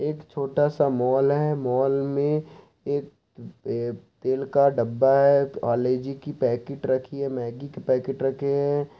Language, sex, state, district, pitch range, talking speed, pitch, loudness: Hindi, male, Bihar, Saharsa, 130-145 Hz, 140 wpm, 140 Hz, -24 LUFS